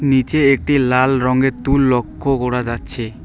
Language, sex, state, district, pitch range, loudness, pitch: Bengali, male, West Bengal, Alipurduar, 125-135 Hz, -16 LUFS, 130 Hz